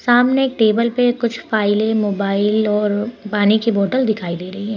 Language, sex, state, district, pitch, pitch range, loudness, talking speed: Hindi, female, Uttar Pradesh, Etah, 215 Hz, 205-235 Hz, -17 LUFS, 190 wpm